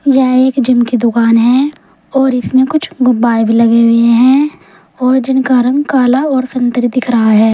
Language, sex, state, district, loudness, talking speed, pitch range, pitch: Hindi, female, Uttar Pradesh, Saharanpur, -11 LUFS, 185 wpm, 235-265 Hz, 255 Hz